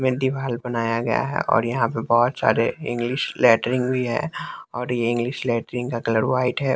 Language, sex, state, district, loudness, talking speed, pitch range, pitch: Hindi, male, Bihar, West Champaran, -22 LUFS, 195 wpm, 115-130 Hz, 120 Hz